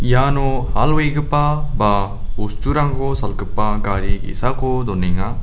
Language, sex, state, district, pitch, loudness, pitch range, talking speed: Garo, male, Meghalaya, South Garo Hills, 115 Hz, -20 LUFS, 100-135 Hz, 100 wpm